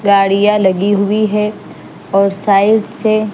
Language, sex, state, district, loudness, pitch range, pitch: Hindi, female, Punjab, Fazilka, -13 LUFS, 200-215 Hz, 205 Hz